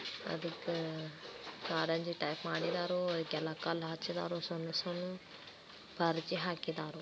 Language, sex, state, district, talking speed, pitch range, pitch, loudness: Kannada, female, Karnataka, Belgaum, 95 wpm, 160-175 Hz, 165 Hz, -38 LUFS